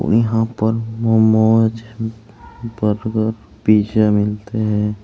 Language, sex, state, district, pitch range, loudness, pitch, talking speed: Hindi, male, Uttar Pradesh, Saharanpur, 105-115 Hz, -17 LUFS, 110 Hz, 95 wpm